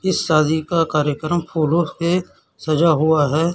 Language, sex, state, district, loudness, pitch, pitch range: Hindi, male, Chhattisgarh, Raipur, -18 LUFS, 160 Hz, 155-170 Hz